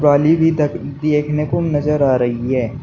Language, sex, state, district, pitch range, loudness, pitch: Hindi, male, Uttar Pradesh, Shamli, 130-150 Hz, -17 LUFS, 145 Hz